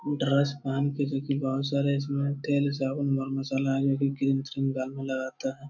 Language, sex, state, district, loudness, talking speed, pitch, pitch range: Hindi, male, Bihar, Jamui, -28 LUFS, 135 wpm, 135 Hz, 135-140 Hz